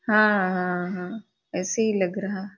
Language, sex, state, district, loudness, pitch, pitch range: Hindi, female, Maharashtra, Nagpur, -25 LUFS, 190 Hz, 180-210 Hz